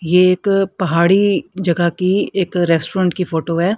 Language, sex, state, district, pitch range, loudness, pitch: Hindi, female, Haryana, Rohtak, 170-190 Hz, -16 LUFS, 180 Hz